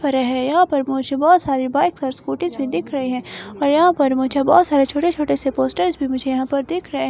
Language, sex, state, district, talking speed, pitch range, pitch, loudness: Hindi, female, Himachal Pradesh, Shimla, 260 wpm, 265-320 Hz, 280 Hz, -18 LUFS